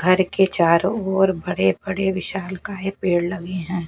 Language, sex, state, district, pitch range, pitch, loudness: Hindi, female, Bihar, West Champaran, 175-190 Hz, 185 Hz, -21 LUFS